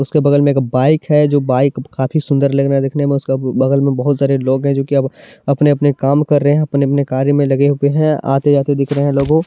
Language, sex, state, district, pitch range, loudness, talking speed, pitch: Hindi, male, Bihar, Supaul, 135-145 Hz, -14 LUFS, 265 wpm, 140 Hz